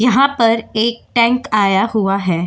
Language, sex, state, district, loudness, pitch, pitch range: Hindi, female, Goa, North and South Goa, -15 LUFS, 225 Hz, 195-235 Hz